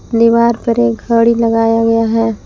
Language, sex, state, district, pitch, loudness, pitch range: Hindi, female, Jharkhand, Palamu, 230 Hz, -12 LUFS, 225-235 Hz